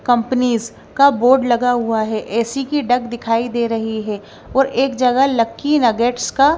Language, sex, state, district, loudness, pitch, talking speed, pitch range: Hindi, female, Punjab, Kapurthala, -17 LUFS, 245 Hz, 180 wpm, 230-265 Hz